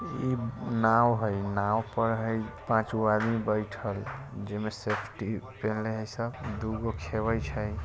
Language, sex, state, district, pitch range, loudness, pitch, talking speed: Hindi, male, Bihar, Vaishali, 105-115 Hz, -30 LUFS, 110 Hz, 145 wpm